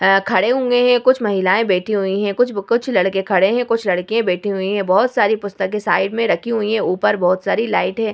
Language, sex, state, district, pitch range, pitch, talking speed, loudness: Hindi, female, Bihar, Vaishali, 190-230 Hz, 205 Hz, 245 wpm, -17 LUFS